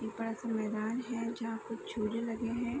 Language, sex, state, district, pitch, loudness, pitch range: Hindi, female, Bihar, Sitamarhi, 230 Hz, -36 LUFS, 225-230 Hz